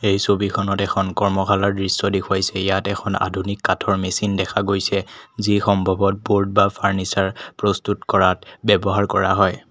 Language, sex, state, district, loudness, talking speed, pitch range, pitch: Assamese, male, Assam, Kamrup Metropolitan, -19 LUFS, 140 wpm, 95-100 Hz, 100 Hz